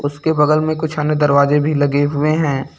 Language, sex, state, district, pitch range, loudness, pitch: Hindi, male, Uttar Pradesh, Lucknow, 145-155 Hz, -16 LUFS, 150 Hz